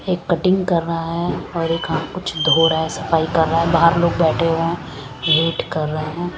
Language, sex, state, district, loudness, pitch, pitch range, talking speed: Hindi, female, Chandigarh, Chandigarh, -18 LUFS, 165 Hz, 160-170 Hz, 235 wpm